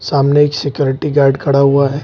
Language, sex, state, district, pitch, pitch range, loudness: Hindi, male, Bihar, Gaya, 140 Hz, 140-145 Hz, -13 LUFS